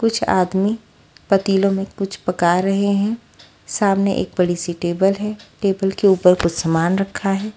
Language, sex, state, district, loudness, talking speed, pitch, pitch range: Hindi, female, Haryana, Rohtak, -18 LUFS, 165 wpm, 195 Hz, 180-200 Hz